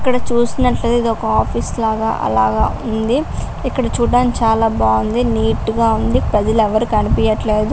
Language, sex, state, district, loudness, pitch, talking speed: Telugu, female, Andhra Pradesh, Guntur, -16 LUFS, 220 Hz, 130 wpm